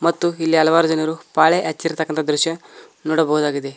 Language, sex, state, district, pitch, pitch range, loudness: Kannada, male, Karnataka, Koppal, 160 Hz, 155-165 Hz, -18 LUFS